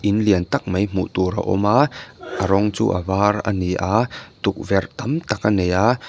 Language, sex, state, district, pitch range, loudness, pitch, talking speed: Mizo, male, Mizoram, Aizawl, 95-110 Hz, -20 LUFS, 105 Hz, 225 wpm